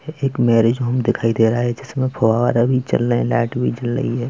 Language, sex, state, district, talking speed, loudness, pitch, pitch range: Hindi, male, Uttar Pradesh, Etah, 250 wpm, -18 LUFS, 120 Hz, 115-125 Hz